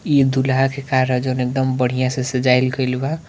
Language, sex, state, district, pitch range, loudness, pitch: Hindi, male, Bihar, Gopalganj, 130-135 Hz, -18 LUFS, 130 Hz